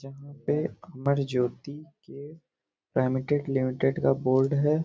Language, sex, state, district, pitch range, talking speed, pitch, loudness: Hindi, male, Bihar, Gopalganj, 130-145 Hz, 125 wpm, 140 Hz, -27 LUFS